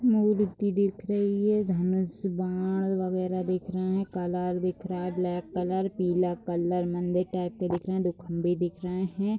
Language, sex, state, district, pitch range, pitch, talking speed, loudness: Hindi, female, Uttar Pradesh, Deoria, 180-195 Hz, 185 Hz, 185 wpm, -29 LUFS